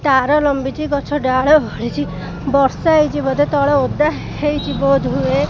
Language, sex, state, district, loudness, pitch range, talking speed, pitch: Odia, female, Odisha, Khordha, -16 LUFS, 260-295 Hz, 140 wpm, 285 Hz